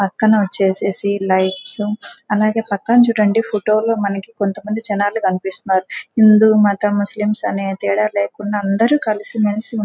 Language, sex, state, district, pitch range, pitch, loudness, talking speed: Telugu, female, Andhra Pradesh, Guntur, 200-215 Hz, 210 Hz, -16 LUFS, 140 wpm